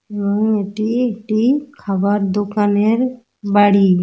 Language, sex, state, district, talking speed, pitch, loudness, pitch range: Bengali, female, West Bengal, Dakshin Dinajpur, 90 wpm, 205 Hz, -17 LUFS, 200-225 Hz